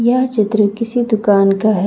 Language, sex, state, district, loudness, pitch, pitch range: Hindi, female, Jharkhand, Deoghar, -14 LUFS, 215 Hz, 205-235 Hz